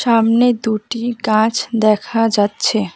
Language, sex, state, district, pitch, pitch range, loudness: Bengali, female, West Bengal, Alipurduar, 225 Hz, 215-235 Hz, -16 LUFS